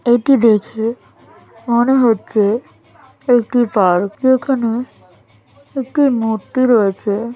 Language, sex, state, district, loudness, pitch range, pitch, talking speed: Bengali, male, West Bengal, Kolkata, -15 LUFS, 205-250 Hz, 235 Hz, 80 wpm